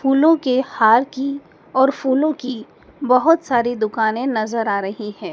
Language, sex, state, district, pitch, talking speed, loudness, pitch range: Hindi, male, Madhya Pradesh, Dhar, 255 Hz, 160 wpm, -18 LUFS, 220-275 Hz